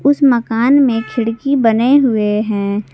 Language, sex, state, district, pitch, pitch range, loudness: Hindi, female, Jharkhand, Garhwa, 230 Hz, 220-275 Hz, -14 LUFS